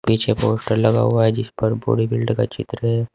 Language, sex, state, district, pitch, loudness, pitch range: Hindi, male, Uttar Pradesh, Saharanpur, 115 Hz, -19 LUFS, 110-120 Hz